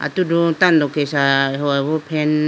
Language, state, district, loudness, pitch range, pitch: Idu Mishmi, Arunachal Pradesh, Lower Dibang Valley, -17 LUFS, 140-160 Hz, 150 Hz